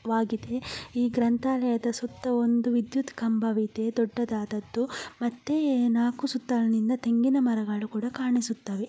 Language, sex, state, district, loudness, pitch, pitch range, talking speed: Kannada, female, Karnataka, Dakshina Kannada, -27 LUFS, 235 Hz, 225-245 Hz, 110 wpm